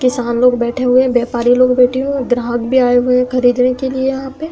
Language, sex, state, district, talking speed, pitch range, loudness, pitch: Hindi, female, Uttar Pradesh, Hamirpur, 265 wpm, 245-260 Hz, -14 LUFS, 250 Hz